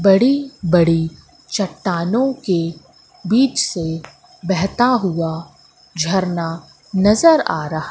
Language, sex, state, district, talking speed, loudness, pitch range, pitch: Hindi, female, Madhya Pradesh, Katni, 90 wpm, -18 LUFS, 165-220 Hz, 180 Hz